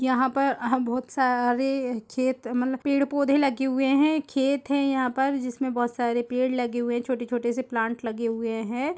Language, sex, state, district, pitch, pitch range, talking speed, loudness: Hindi, female, Uttar Pradesh, Jalaun, 255 Hz, 240-270 Hz, 185 wpm, -25 LUFS